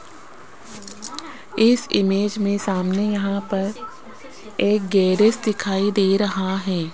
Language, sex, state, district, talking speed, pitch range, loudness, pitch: Hindi, female, Rajasthan, Jaipur, 105 wpm, 195-215 Hz, -20 LUFS, 200 Hz